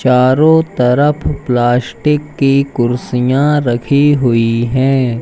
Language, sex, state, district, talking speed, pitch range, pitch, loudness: Hindi, male, Madhya Pradesh, Umaria, 90 wpm, 120-145 Hz, 130 Hz, -12 LUFS